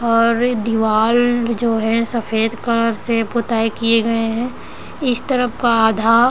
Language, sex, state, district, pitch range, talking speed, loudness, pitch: Hindi, female, Chhattisgarh, Raigarh, 225-235 Hz, 140 wpm, -17 LUFS, 230 Hz